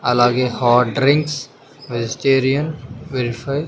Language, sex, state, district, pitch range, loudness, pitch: Telugu, male, Andhra Pradesh, Sri Satya Sai, 125-140 Hz, -18 LUFS, 130 Hz